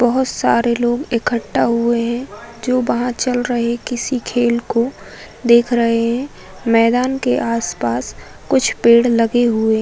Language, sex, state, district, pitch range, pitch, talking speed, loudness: Hindi, female, Uttar Pradesh, Varanasi, 230-245 Hz, 235 Hz, 145 wpm, -17 LUFS